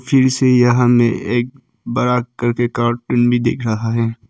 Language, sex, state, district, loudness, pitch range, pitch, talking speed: Hindi, male, Arunachal Pradesh, Papum Pare, -16 LUFS, 120-125 Hz, 120 Hz, 170 wpm